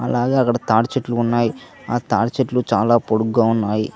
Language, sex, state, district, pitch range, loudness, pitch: Telugu, male, Telangana, Mahabubabad, 110-120 Hz, -18 LUFS, 120 Hz